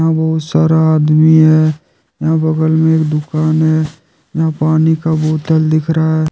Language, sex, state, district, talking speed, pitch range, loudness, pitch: Hindi, male, Jharkhand, Deoghar, 160 wpm, 155-160 Hz, -12 LUFS, 160 Hz